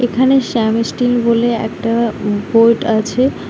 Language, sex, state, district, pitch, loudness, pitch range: Bengali, female, West Bengal, Alipurduar, 235 Hz, -14 LUFS, 225-245 Hz